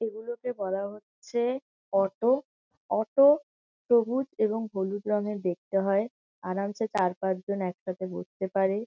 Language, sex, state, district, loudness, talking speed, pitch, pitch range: Bengali, female, West Bengal, Kolkata, -29 LUFS, 120 wpm, 205 Hz, 190-235 Hz